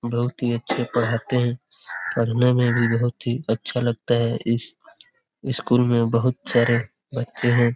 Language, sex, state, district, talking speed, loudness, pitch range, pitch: Hindi, male, Bihar, Lakhisarai, 145 wpm, -22 LUFS, 115-125 Hz, 120 Hz